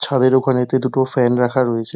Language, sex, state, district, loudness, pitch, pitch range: Bengali, male, West Bengal, Dakshin Dinajpur, -16 LUFS, 130 Hz, 125-130 Hz